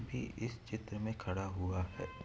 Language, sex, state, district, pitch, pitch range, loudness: Hindi, male, Chhattisgarh, Korba, 110 Hz, 95-115 Hz, -41 LUFS